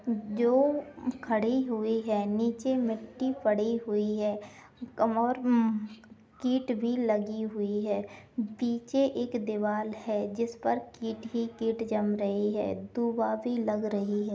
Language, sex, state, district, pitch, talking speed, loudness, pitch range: Hindi, female, Uttar Pradesh, Jyotiba Phule Nagar, 225 Hz, 140 wpm, -30 LUFS, 210-240 Hz